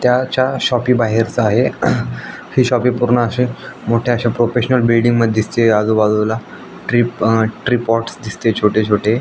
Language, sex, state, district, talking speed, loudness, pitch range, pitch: Marathi, male, Maharashtra, Aurangabad, 145 wpm, -15 LUFS, 110-125 Hz, 115 Hz